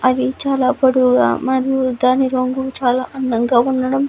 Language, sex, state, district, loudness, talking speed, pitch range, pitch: Telugu, female, Andhra Pradesh, Visakhapatnam, -16 LUFS, 145 wpm, 255-265 Hz, 255 Hz